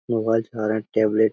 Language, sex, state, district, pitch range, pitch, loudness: Hindi, male, Uttar Pradesh, Budaun, 110-115 Hz, 110 Hz, -22 LUFS